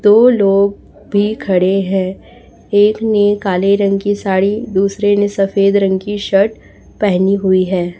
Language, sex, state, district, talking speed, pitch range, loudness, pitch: Hindi, female, Chhattisgarh, Raipur, 150 wpm, 195-205 Hz, -14 LUFS, 200 Hz